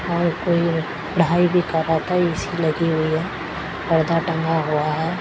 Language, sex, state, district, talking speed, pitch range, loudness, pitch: Hindi, female, Chhattisgarh, Raipur, 170 wpm, 160-170 Hz, -21 LUFS, 165 Hz